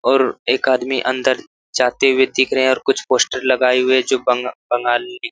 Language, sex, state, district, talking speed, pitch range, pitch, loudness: Hindi, male, Jharkhand, Sahebganj, 190 wpm, 125-130 Hz, 130 Hz, -17 LUFS